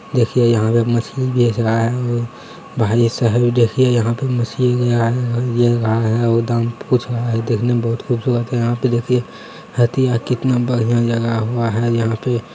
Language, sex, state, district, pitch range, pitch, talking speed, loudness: Hindi, male, Bihar, Bhagalpur, 115-125 Hz, 120 Hz, 175 wpm, -17 LUFS